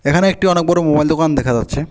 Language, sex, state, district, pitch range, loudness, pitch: Bengali, male, West Bengal, Alipurduar, 145-175 Hz, -15 LUFS, 155 Hz